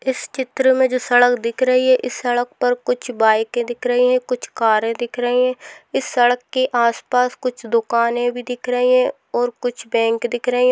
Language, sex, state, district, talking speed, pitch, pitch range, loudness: Hindi, female, Rajasthan, Nagaur, 215 wpm, 245 Hz, 240-255 Hz, -18 LUFS